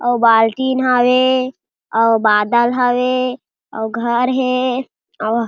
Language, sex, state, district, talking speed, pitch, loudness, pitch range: Chhattisgarhi, female, Chhattisgarh, Jashpur, 110 wpm, 245 Hz, -15 LUFS, 230-255 Hz